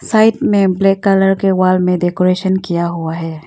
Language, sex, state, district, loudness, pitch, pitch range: Hindi, female, Arunachal Pradesh, Longding, -14 LUFS, 185 Hz, 175-195 Hz